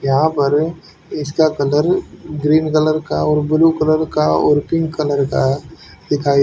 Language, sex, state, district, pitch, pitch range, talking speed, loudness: Hindi, male, Haryana, Jhajjar, 150 Hz, 145-155 Hz, 170 wpm, -16 LUFS